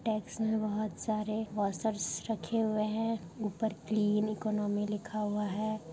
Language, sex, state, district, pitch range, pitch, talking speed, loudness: Hindi, female, Bihar, Darbhanga, 205-220 Hz, 215 Hz, 140 wpm, -34 LUFS